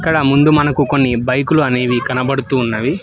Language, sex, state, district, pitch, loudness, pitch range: Telugu, male, Telangana, Hyderabad, 135 Hz, -14 LUFS, 125-145 Hz